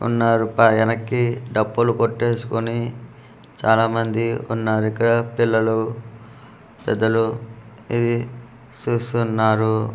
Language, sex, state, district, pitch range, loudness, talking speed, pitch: Telugu, male, Andhra Pradesh, Manyam, 110-120 Hz, -20 LUFS, 85 wpm, 115 Hz